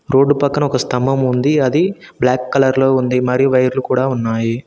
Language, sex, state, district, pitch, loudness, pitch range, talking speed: Telugu, male, Telangana, Mahabubabad, 130 Hz, -15 LUFS, 125-140 Hz, 180 wpm